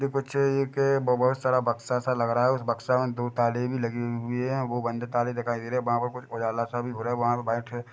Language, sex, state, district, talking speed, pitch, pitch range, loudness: Hindi, male, Chhattisgarh, Bilaspur, 285 wpm, 120 Hz, 120-125 Hz, -27 LUFS